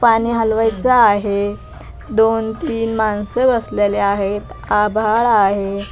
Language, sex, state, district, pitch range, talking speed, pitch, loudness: Marathi, female, Maharashtra, Mumbai Suburban, 205-225 Hz, 100 wpm, 220 Hz, -16 LUFS